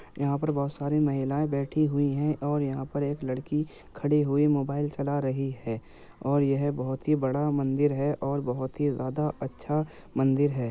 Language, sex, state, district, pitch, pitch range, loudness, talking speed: Hindi, male, Uttar Pradesh, Muzaffarnagar, 140 Hz, 135-145 Hz, -28 LUFS, 185 wpm